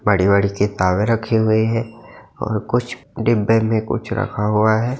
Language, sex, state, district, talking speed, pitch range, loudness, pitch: Hindi, male, Bihar, Gaya, 155 wpm, 105-115 Hz, -18 LUFS, 110 Hz